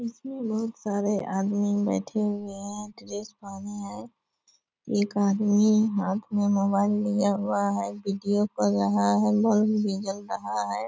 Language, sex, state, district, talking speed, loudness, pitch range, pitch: Hindi, female, Bihar, Purnia, 175 wpm, -26 LUFS, 195-210 Hz, 205 Hz